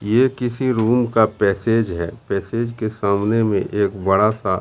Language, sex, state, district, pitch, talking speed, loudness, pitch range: Hindi, male, Bihar, Katihar, 110 Hz, 170 wpm, -19 LUFS, 100-115 Hz